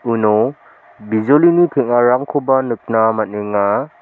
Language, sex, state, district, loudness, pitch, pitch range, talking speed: Garo, male, Meghalaya, South Garo Hills, -15 LUFS, 120 Hz, 110-135 Hz, 75 wpm